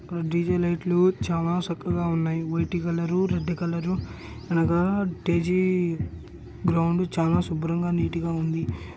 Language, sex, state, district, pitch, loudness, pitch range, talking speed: Telugu, male, Andhra Pradesh, Krishna, 170 Hz, -25 LUFS, 165-175 Hz, 115 wpm